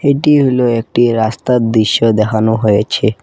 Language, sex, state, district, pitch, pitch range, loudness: Bengali, male, Assam, Kamrup Metropolitan, 115 Hz, 110-125 Hz, -12 LUFS